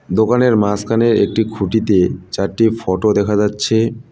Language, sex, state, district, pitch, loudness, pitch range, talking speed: Bengali, male, West Bengal, Cooch Behar, 110 Hz, -15 LUFS, 105-115 Hz, 115 wpm